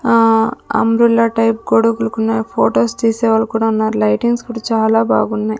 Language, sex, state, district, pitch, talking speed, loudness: Telugu, female, Andhra Pradesh, Sri Satya Sai, 225 Hz, 150 wpm, -15 LUFS